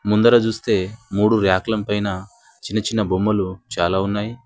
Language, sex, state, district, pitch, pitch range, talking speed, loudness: Telugu, male, Telangana, Komaram Bheem, 105 Hz, 95-110 Hz, 135 wpm, -20 LUFS